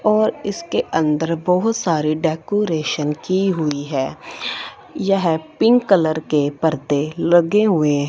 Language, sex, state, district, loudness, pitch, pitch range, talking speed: Hindi, female, Punjab, Fazilka, -19 LUFS, 165 Hz, 150-195 Hz, 120 wpm